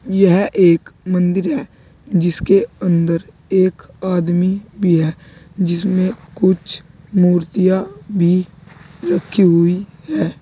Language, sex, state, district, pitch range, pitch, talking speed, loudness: Hindi, male, Uttar Pradesh, Saharanpur, 170-190 Hz, 180 Hz, 100 wpm, -16 LUFS